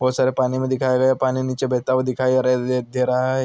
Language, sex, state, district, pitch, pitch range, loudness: Hindi, male, Andhra Pradesh, Anantapur, 130 Hz, 125-130 Hz, -20 LUFS